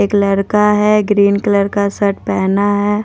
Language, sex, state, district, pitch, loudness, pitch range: Hindi, female, Delhi, New Delhi, 205 Hz, -14 LUFS, 200-210 Hz